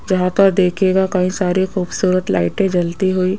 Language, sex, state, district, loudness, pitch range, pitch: Hindi, female, Rajasthan, Jaipur, -16 LUFS, 180-190 Hz, 185 Hz